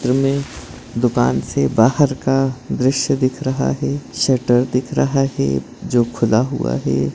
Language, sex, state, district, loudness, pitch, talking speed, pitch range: Hindi, male, Maharashtra, Dhule, -18 LUFS, 125 Hz, 140 wpm, 115-135 Hz